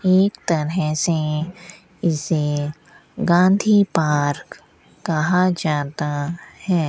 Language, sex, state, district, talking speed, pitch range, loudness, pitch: Hindi, female, Rajasthan, Bikaner, 80 wpm, 150-180 Hz, -20 LUFS, 165 Hz